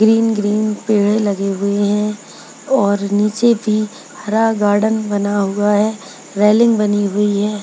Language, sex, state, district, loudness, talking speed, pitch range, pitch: Hindi, female, Bihar, Purnia, -16 LUFS, 150 wpm, 205-220 Hz, 210 Hz